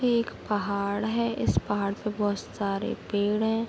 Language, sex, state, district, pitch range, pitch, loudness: Hindi, female, Bihar, Kishanganj, 200-225 Hz, 205 Hz, -28 LUFS